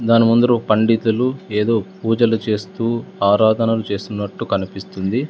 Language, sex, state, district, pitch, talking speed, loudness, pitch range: Telugu, male, Andhra Pradesh, Sri Satya Sai, 110 Hz, 115 wpm, -18 LUFS, 100-115 Hz